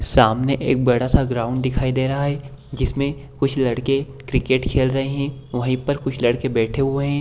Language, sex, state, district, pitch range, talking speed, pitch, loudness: Hindi, male, Bihar, Kishanganj, 130-140 Hz, 185 wpm, 135 Hz, -20 LUFS